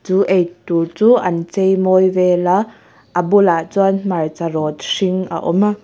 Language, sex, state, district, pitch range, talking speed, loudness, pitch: Mizo, female, Mizoram, Aizawl, 170-195 Hz, 155 wpm, -16 LUFS, 185 Hz